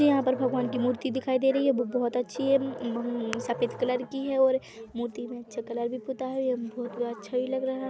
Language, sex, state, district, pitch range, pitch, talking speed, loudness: Hindi, female, Chhattisgarh, Bilaspur, 240-265 Hz, 250 Hz, 235 wpm, -29 LUFS